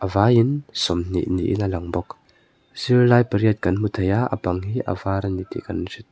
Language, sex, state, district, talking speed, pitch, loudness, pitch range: Mizo, male, Mizoram, Aizawl, 205 wpm, 100 Hz, -21 LUFS, 90-115 Hz